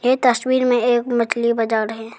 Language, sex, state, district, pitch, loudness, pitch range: Hindi, female, Arunachal Pradesh, Lower Dibang Valley, 235 Hz, -18 LUFS, 225-245 Hz